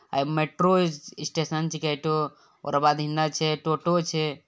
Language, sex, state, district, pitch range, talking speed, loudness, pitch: Maithili, male, Bihar, Bhagalpur, 150-160 Hz, 175 wpm, -25 LUFS, 155 Hz